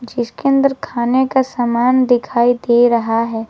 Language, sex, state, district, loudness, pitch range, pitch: Hindi, female, Jharkhand, Garhwa, -15 LUFS, 235-260 Hz, 245 Hz